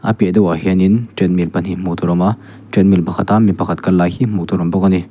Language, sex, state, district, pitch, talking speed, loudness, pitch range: Mizo, male, Mizoram, Aizawl, 95 Hz, 280 wpm, -15 LUFS, 90-100 Hz